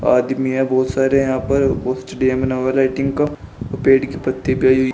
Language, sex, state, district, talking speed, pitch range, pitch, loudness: Hindi, male, Uttar Pradesh, Shamli, 160 wpm, 130-135 Hz, 130 Hz, -17 LUFS